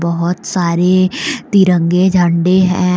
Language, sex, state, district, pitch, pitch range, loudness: Hindi, female, Jharkhand, Deoghar, 180 Hz, 175-185 Hz, -13 LUFS